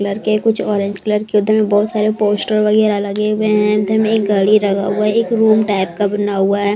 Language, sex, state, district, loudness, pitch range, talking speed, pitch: Hindi, female, Maharashtra, Mumbai Suburban, -15 LUFS, 205-215 Hz, 255 wpm, 210 Hz